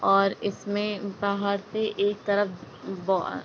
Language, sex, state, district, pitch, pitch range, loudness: Hindi, female, Jharkhand, Jamtara, 200 Hz, 195-205 Hz, -27 LUFS